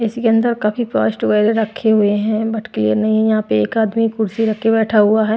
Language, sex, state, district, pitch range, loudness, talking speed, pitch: Hindi, female, Punjab, Pathankot, 210-225 Hz, -16 LUFS, 225 wpm, 220 Hz